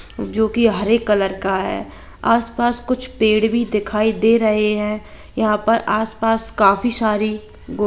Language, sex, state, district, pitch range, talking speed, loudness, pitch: Hindi, female, Jharkhand, Jamtara, 210-230 Hz, 170 wpm, -18 LUFS, 220 Hz